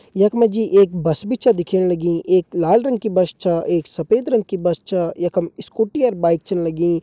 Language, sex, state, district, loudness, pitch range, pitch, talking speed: Hindi, male, Uttarakhand, Uttarkashi, -18 LUFS, 170-220 Hz, 185 Hz, 230 wpm